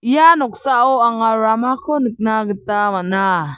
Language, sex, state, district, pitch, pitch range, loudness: Garo, female, Meghalaya, South Garo Hills, 225 Hz, 205-260 Hz, -16 LUFS